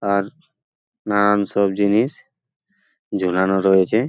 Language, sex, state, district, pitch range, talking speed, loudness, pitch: Bengali, male, West Bengal, Purulia, 95-105 Hz, 90 wpm, -19 LUFS, 100 Hz